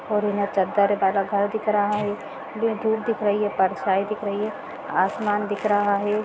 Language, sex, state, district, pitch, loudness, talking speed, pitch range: Hindi, female, Chhattisgarh, Sarguja, 205 Hz, -23 LUFS, 200 wpm, 200-210 Hz